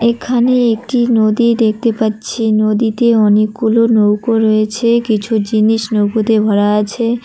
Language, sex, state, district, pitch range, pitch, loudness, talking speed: Bengali, female, West Bengal, Cooch Behar, 215-235 Hz, 225 Hz, -13 LUFS, 115 wpm